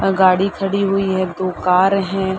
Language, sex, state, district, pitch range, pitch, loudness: Hindi, female, Uttar Pradesh, Gorakhpur, 185-195 Hz, 190 Hz, -17 LUFS